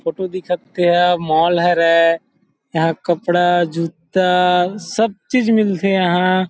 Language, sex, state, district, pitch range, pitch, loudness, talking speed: Chhattisgarhi, male, Chhattisgarh, Rajnandgaon, 170-190 Hz, 180 Hz, -16 LUFS, 120 wpm